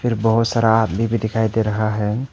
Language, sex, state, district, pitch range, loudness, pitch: Hindi, male, Arunachal Pradesh, Papum Pare, 110-115 Hz, -18 LUFS, 110 Hz